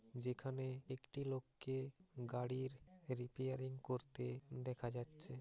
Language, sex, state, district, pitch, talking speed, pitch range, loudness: Bengali, male, West Bengal, Paschim Medinipur, 130 Hz, 90 wpm, 125-135 Hz, -47 LUFS